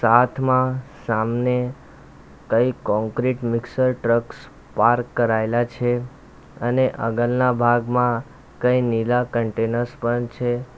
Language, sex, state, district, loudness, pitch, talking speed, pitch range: Gujarati, male, Gujarat, Valsad, -21 LUFS, 120 Hz, 95 wpm, 115-125 Hz